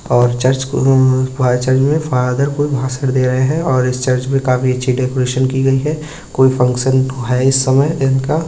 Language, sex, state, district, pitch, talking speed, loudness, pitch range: Hindi, male, Uttar Pradesh, Budaun, 130 Hz, 205 wpm, -14 LUFS, 125-135 Hz